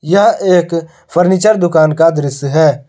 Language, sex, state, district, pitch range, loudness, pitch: Hindi, male, Jharkhand, Garhwa, 155-180 Hz, -12 LUFS, 165 Hz